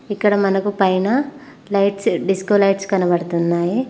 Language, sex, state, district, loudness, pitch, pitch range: Telugu, female, Telangana, Mahabubabad, -18 LUFS, 200 Hz, 190-205 Hz